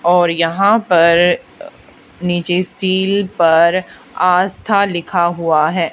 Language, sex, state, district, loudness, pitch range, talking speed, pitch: Hindi, female, Haryana, Charkhi Dadri, -14 LUFS, 170-190 Hz, 100 wpm, 175 Hz